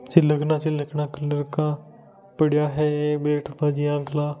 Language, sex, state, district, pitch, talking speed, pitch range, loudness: Hindi, male, Rajasthan, Nagaur, 150 Hz, 135 wpm, 145-150 Hz, -23 LUFS